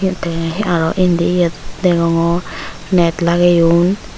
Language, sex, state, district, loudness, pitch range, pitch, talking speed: Chakma, female, Tripura, Unakoti, -15 LUFS, 165-180 Hz, 170 Hz, 85 wpm